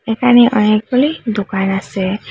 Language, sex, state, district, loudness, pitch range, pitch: Bengali, female, Assam, Hailakandi, -14 LUFS, 195-245 Hz, 215 Hz